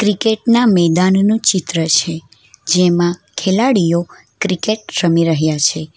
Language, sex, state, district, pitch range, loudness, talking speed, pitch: Gujarati, female, Gujarat, Valsad, 165-200 Hz, -14 LUFS, 110 wpm, 175 Hz